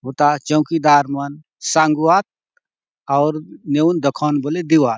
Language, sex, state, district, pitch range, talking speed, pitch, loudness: Halbi, male, Chhattisgarh, Bastar, 145-155 Hz, 130 wpm, 150 Hz, -17 LUFS